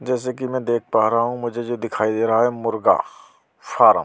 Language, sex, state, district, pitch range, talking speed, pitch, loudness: Hindi, male, Delhi, New Delhi, 115-120 Hz, 235 wpm, 120 Hz, -20 LUFS